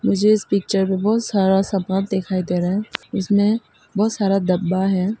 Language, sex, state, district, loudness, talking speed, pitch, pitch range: Hindi, female, Arunachal Pradesh, Papum Pare, -20 LUFS, 185 wpm, 195 Hz, 190-205 Hz